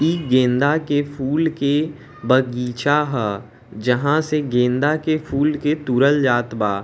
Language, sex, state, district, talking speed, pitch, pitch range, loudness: Bhojpuri, male, Bihar, East Champaran, 140 wpm, 140 Hz, 125-150 Hz, -19 LUFS